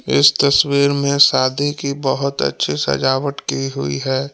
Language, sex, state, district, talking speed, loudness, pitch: Hindi, male, Jharkhand, Palamu, 150 wpm, -16 LUFS, 135 Hz